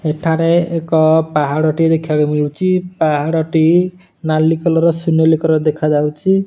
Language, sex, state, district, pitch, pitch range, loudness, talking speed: Odia, male, Odisha, Nuapada, 160 Hz, 155-170 Hz, -14 LUFS, 140 wpm